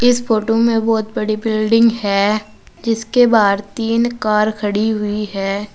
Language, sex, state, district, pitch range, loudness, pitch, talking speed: Hindi, female, Uttar Pradesh, Saharanpur, 210-230 Hz, -16 LUFS, 220 Hz, 145 wpm